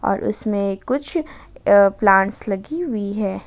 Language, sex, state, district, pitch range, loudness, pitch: Hindi, female, Jharkhand, Ranchi, 195-265 Hz, -19 LUFS, 205 Hz